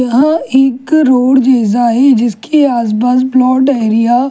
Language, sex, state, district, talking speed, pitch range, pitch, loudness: Hindi, female, Delhi, New Delhi, 140 wpm, 240-270 Hz, 255 Hz, -10 LUFS